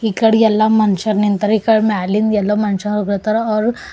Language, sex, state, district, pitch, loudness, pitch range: Kannada, female, Karnataka, Bidar, 215 Hz, -15 LUFS, 210-220 Hz